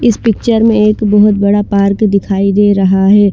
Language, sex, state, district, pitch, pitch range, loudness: Hindi, female, Chandigarh, Chandigarh, 205 Hz, 200-215 Hz, -10 LUFS